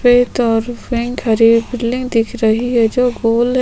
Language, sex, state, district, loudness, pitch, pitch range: Hindi, female, Chhattisgarh, Sukma, -15 LUFS, 240 Hz, 230-245 Hz